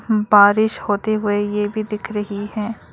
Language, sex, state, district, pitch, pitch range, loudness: Hindi, female, Arunachal Pradesh, Lower Dibang Valley, 210 Hz, 205-215 Hz, -18 LUFS